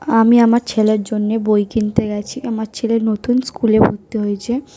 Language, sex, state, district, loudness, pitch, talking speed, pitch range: Bengali, female, West Bengal, North 24 Parganas, -16 LUFS, 220 Hz, 175 wpm, 215-235 Hz